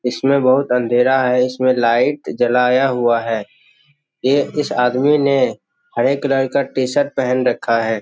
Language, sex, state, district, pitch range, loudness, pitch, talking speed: Hindi, male, Bihar, Jamui, 125-140 Hz, -16 LUFS, 130 Hz, 150 wpm